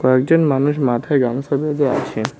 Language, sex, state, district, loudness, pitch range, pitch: Bengali, male, West Bengal, Cooch Behar, -17 LUFS, 130-150 Hz, 140 Hz